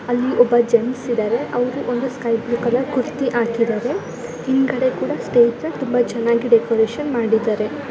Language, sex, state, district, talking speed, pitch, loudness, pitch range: Kannada, female, Karnataka, Belgaum, 130 wpm, 240 Hz, -19 LUFS, 230-255 Hz